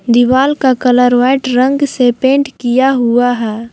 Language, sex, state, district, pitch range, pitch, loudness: Hindi, female, Jharkhand, Palamu, 245-265 Hz, 250 Hz, -11 LUFS